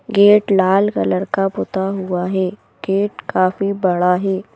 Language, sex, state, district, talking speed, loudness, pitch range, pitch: Hindi, female, Madhya Pradesh, Bhopal, 145 wpm, -17 LUFS, 185-200 Hz, 195 Hz